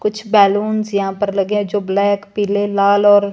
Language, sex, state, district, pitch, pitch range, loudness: Hindi, male, Himachal Pradesh, Shimla, 205 Hz, 200-205 Hz, -16 LUFS